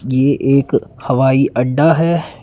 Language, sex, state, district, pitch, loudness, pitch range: Hindi, male, Karnataka, Bangalore, 135 Hz, -14 LUFS, 130-155 Hz